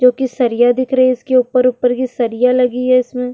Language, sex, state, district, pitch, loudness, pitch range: Hindi, female, Uttarakhand, Tehri Garhwal, 250 Hz, -14 LUFS, 245-255 Hz